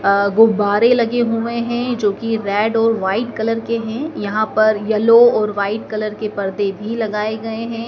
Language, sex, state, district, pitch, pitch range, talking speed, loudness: Hindi, female, Madhya Pradesh, Dhar, 220 Hz, 210-230 Hz, 190 wpm, -17 LUFS